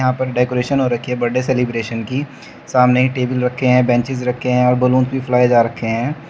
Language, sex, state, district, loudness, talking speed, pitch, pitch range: Hindi, male, Uttar Pradesh, Shamli, -16 LUFS, 220 wpm, 125 Hz, 125-130 Hz